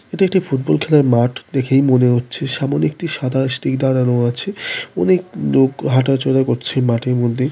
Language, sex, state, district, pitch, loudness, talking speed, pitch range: Bengali, male, West Bengal, Malda, 135 Hz, -17 LUFS, 160 wpm, 125-150 Hz